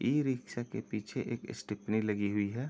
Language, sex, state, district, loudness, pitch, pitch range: Hindi, male, Uttar Pradesh, Jyotiba Phule Nagar, -35 LUFS, 115 Hz, 105-130 Hz